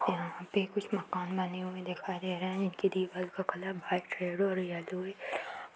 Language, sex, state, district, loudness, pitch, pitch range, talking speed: Hindi, female, Bihar, Bhagalpur, -35 LUFS, 185 Hz, 180-190 Hz, 200 wpm